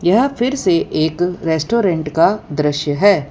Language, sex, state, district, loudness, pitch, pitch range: Hindi, female, Gujarat, Valsad, -16 LUFS, 170 Hz, 155-205 Hz